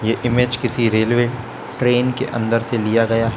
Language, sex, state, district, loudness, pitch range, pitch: Hindi, male, Chhattisgarh, Raipur, -18 LUFS, 115-125 Hz, 120 Hz